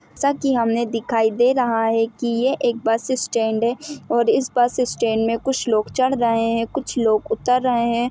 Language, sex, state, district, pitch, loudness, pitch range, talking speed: Hindi, female, Chhattisgarh, Kabirdham, 235 Hz, -20 LUFS, 225-255 Hz, 205 wpm